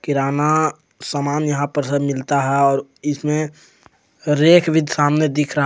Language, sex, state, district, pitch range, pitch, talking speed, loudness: Hindi, male, Jharkhand, Palamu, 140-155 Hz, 145 Hz, 150 wpm, -18 LUFS